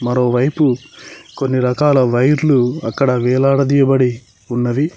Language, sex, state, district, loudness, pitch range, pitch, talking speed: Telugu, male, Telangana, Mahabubabad, -15 LUFS, 125-140 Hz, 130 Hz, 85 wpm